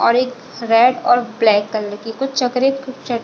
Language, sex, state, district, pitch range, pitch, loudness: Hindi, female, Chhattisgarh, Bilaspur, 225-255 Hz, 245 Hz, -17 LUFS